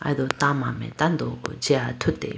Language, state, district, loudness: Idu Mishmi, Arunachal Pradesh, Lower Dibang Valley, -24 LUFS